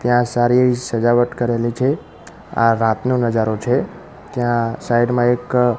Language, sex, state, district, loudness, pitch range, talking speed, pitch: Gujarati, male, Gujarat, Gandhinagar, -18 LUFS, 120-125 Hz, 135 wpm, 120 Hz